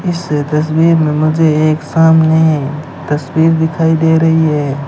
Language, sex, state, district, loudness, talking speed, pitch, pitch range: Hindi, male, Rajasthan, Bikaner, -12 LUFS, 135 wpm, 160 Hz, 150-160 Hz